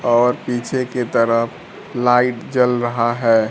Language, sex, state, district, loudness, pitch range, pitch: Hindi, male, Bihar, Kaimur, -18 LUFS, 115-125 Hz, 120 Hz